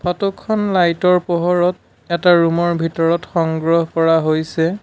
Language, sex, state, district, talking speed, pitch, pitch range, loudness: Assamese, male, Assam, Sonitpur, 110 wpm, 170 Hz, 165-180 Hz, -16 LUFS